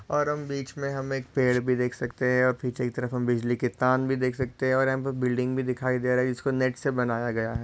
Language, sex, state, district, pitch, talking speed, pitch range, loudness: Hindi, male, Maharashtra, Solapur, 125 Hz, 290 wpm, 125-135 Hz, -27 LUFS